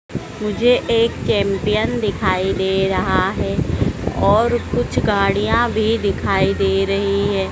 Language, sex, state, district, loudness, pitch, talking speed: Hindi, female, Madhya Pradesh, Dhar, -18 LUFS, 195 Hz, 120 wpm